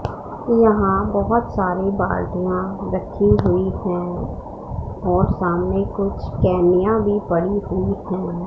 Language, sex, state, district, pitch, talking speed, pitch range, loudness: Hindi, female, Punjab, Pathankot, 185 Hz, 105 wpm, 175-200 Hz, -20 LUFS